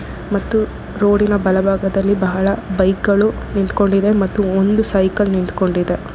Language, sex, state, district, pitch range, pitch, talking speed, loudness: Kannada, female, Karnataka, Bangalore, 190-205 Hz, 195 Hz, 115 wpm, -16 LUFS